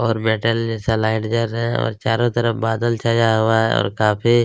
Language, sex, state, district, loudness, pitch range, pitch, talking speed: Hindi, male, Chhattisgarh, Kabirdham, -19 LUFS, 110-115 Hz, 115 Hz, 230 wpm